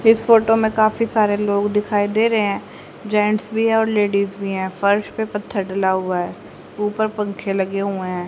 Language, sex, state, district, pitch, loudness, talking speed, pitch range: Hindi, female, Haryana, Charkhi Dadri, 205 Hz, -19 LUFS, 205 wpm, 195-220 Hz